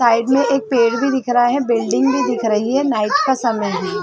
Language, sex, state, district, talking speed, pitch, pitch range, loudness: Hindi, female, Chhattisgarh, Bilaspur, 250 wpm, 245 Hz, 230-265 Hz, -16 LUFS